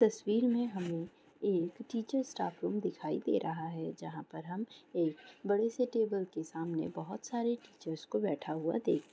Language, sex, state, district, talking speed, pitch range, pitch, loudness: Hindi, female, Bihar, Saharsa, 185 wpm, 165-235 Hz, 205 Hz, -36 LUFS